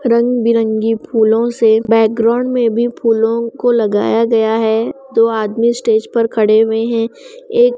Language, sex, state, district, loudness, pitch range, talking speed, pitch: Hindi, female, Odisha, Nuapada, -14 LUFS, 225-235 Hz, 155 wpm, 230 Hz